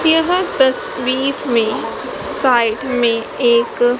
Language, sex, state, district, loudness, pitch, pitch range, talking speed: Hindi, female, Madhya Pradesh, Dhar, -16 LUFS, 250 Hz, 235-270 Hz, 90 wpm